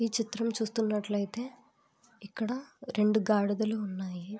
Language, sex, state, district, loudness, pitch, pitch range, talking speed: Telugu, female, Andhra Pradesh, Visakhapatnam, -31 LUFS, 215 Hz, 205-230 Hz, 95 wpm